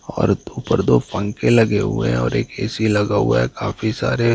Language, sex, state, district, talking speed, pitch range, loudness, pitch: Hindi, male, Jharkhand, Jamtara, 205 wpm, 100-115 Hz, -19 LUFS, 105 Hz